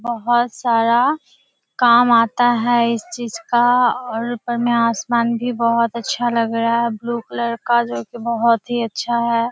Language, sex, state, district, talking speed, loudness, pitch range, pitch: Hindi, female, Bihar, Kishanganj, 170 wpm, -18 LUFS, 230-240 Hz, 235 Hz